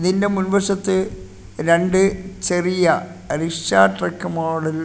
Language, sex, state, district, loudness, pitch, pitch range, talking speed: Malayalam, male, Kerala, Kasaragod, -19 LUFS, 175 Hz, 160-190 Hz, 100 wpm